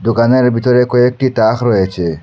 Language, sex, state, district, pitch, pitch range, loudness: Bengali, male, Assam, Hailakandi, 120 Hz, 110-125 Hz, -12 LUFS